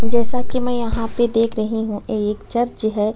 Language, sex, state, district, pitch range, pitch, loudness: Hindi, female, Chhattisgarh, Sukma, 215-240 Hz, 225 Hz, -21 LUFS